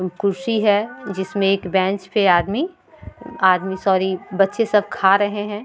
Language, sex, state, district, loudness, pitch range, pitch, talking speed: Hindi, female, Bihar, Vaishali, -19 LUFS, 190-210 Hz, 200 Hz, 150 wpm